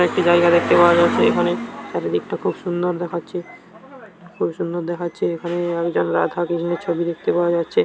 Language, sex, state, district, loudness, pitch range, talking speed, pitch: Bengali, male, West Bengal, Jhargram, -20 LUFS, 170-175 Hz, 175 wpm, 170 Hz